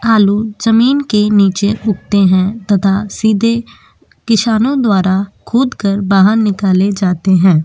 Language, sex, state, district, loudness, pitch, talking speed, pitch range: Hindi, female, Uttar Pradesh, Jyotiba Phule Nagar, -12 LUFS, 205 Hz, 125 wpm, 195-225 Hz